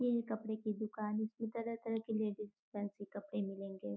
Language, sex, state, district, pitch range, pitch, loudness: Hindi, female, Uttar Pradesh, Gorakhpur, 205-225 Hz, 215 Hz, -41 LUFS